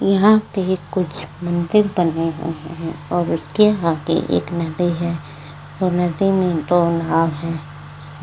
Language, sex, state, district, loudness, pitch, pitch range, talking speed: Hindi, female, Uttar Pradesh, Varanasi, -19 LUFS, 170 Hz, 165-180 Hz, 140 wpm